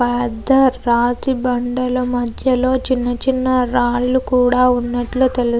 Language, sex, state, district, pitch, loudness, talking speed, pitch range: Telugu, female, Andhra Pradesh, Krishna, 250 Hz, -17 LUFS, 120 wpm, 245-255 Hz